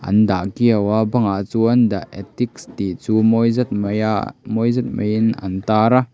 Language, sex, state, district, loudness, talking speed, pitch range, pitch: Mizo, male, Mizoram, Aizawl, -18 LUFS, 195 wpm, 100-120 Hz, 110 Hz